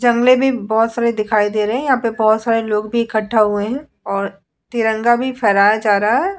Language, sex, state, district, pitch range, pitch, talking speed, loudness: Hindi, female, Bihar, Vaishali, 210-240 Hz, 225 Hz, 225 wpm, -16 LUFS